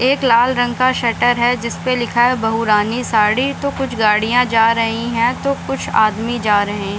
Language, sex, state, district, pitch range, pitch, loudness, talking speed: Hindi, female, Bihar, Samastipur, 220-250 Hz, 235 Hz, -16 LUFS, 195 wpm